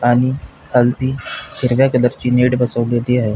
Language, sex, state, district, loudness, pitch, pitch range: Marathi, male, Maharashtra, Pune, -16 LUFS, 125 Hz, 120-125 Hz